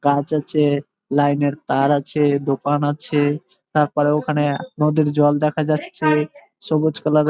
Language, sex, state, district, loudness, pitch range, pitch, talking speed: Bengali, male, West Bengal, Malda, -19 LUFS, 145-155 Hz, 150 Hz, 150 wpm